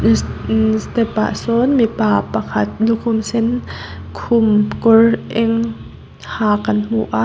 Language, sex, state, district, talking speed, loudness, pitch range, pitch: Mizo, female, Mizoram, Aizawl, 115 wpm, -16 LUFS, 205-230 Hz, 220 Hz